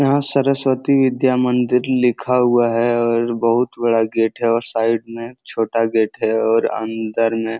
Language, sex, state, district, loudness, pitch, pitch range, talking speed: Hindi, male, Uttar Pradesh, Hamirpur, -17 LUFS, 115 Hz, 115-125 Hz, 175 wpm